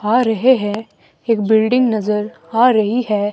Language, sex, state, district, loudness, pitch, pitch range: Hindi, female, Himachal Pradesh, Shimla, -16 LUFS, 220 Hz, 210-240 Hz